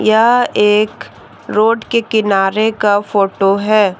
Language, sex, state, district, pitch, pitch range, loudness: Hindi, female, Jharkhand, Deoghar, 210 Hz, 205-220 Hz, -13 LUFS